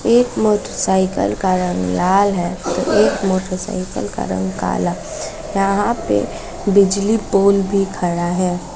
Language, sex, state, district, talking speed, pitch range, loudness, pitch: Hindi, female, Bihar, West Champaran, 130 wpm, 180-200 Hz, -17 LUFS, 190 Hz